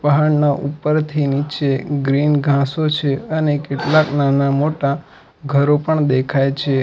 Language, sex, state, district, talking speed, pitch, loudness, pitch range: Gujarati, male, Gujarat, Valsad, 130 wpm, 145 Hz, -17 LUFS, 140-150 Hz